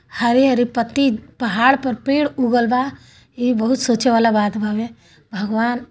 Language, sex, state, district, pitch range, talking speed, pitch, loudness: Hindi, female, Bihar, Gopalganj, 230-255 Hz, 160 wpm, 240 Hz, -18 LUFS